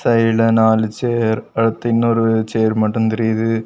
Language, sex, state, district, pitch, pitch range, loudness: Tamil, male, Tamil Nadu, Kanyakumari, 115 Hz, 110-115 Hz, -16 LUFS